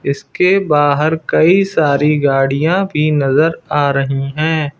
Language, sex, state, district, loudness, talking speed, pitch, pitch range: Hindi, male, Uttar Pradesh, Lucknow, -14 LUFS, 125 wpm, 150 Hz, 140-160 Hz